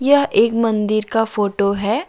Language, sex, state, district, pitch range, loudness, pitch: Hindi, male, Jharkhand, Deoghar, 210-230 Hz, -17 LUFS, 220 Hz